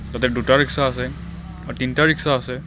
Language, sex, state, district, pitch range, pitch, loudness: Assamese, male, Assam, Kamrup Metropolitan, 120-135 Hz, 130 Hz, -19 LUFS